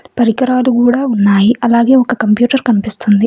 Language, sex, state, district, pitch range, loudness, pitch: Telugu, female, Telangana, Hyderabad, 215-255 Hz, -11 LUFS, 235 Hz